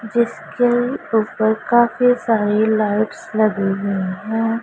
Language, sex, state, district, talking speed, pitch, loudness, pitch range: Hindi, female, Punjab, Pathankot, 105 wpm, 220 Hz, -18 LUFS, 215-240 Hz